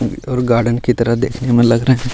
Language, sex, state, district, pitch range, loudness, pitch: Hindi, male, Bihar, Gaya, 120-125 Hz, -15 LUFS, 120 Hz